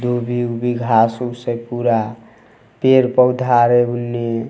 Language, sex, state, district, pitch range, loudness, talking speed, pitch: Hindi, male, Bihar, Samastipur, 115-120 Hz, -17 LUFS, 120 wpm, 120 Hz